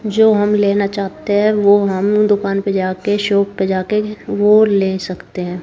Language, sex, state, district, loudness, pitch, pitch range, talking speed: Hindi, female, Haryana, Jhajjar, -15 LUFS, 200 Hz, 190-210 Hz, 180 wpm